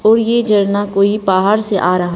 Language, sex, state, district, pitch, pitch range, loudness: Hindi, female, Arunachal Pradesh, Papum Pare, 205 Hz, 195-215 Hz, -13 LUFS